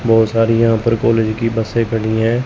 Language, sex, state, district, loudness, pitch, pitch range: Hindi, male, Chandigarh, Chandigarh, -15 LUFS, 115 Hz, 110-115 Hz